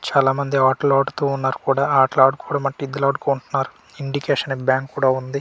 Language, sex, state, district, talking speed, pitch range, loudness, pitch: Telugu, male, Andhra Pradesh, Manyam, 155 wpm, 135-140 Hz, -20 LUFS, 135 Hz